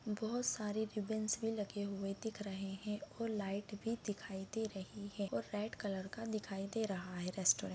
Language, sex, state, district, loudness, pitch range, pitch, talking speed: Hindi, female, Bihar, Saharsa, -41 LUFS, 195-220 Hz, 205 Hz, 195 wpm